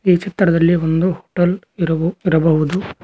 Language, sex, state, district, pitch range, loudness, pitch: Kannada, male, Karnataka, Koppal, 165-185 Hz, -17 LUFS, 175 Hz